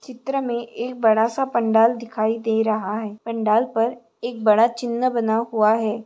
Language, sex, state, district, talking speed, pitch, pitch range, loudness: Hindi, female, Andhra Pradesh, Chittoor, 170 wpm, 230 Hz, 220-240 Hz, -21 LUFS